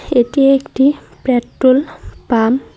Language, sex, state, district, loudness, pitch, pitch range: Bengali, female, West Bengal, Cooch Behar, -14 LUFS, 260 Hz, 245-275 Hz